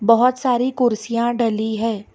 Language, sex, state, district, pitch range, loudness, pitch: Hindi, female, Karnataka, Bangalore, 225-245 Hz, -19 LUFS, 235 Hz